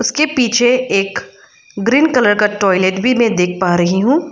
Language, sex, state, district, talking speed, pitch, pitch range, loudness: Hindi, female, Arunachal Pradesh, Lower Dibang Valley, 180 wpm, 225 Hz, 190-250 Hz, -14 LUFS